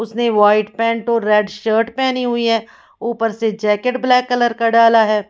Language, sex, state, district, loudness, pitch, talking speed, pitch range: Hindi, female, Haryana, Jhajjar, -16 LUFS, 230 Hz, 190 wpm, 220-235 Hz